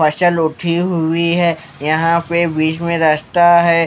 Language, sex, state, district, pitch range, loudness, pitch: Hindi, male, Maharashtra, Mumbai Suburban, 160-170 Hz, -15 LUFS, 170 Hz